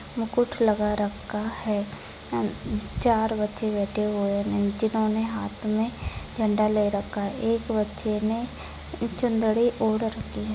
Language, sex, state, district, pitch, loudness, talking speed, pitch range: Hindi, female, Maharashtra, Chandrapur, 215 Hz, -26 LUFS, 130 wpm, 210-225 Hz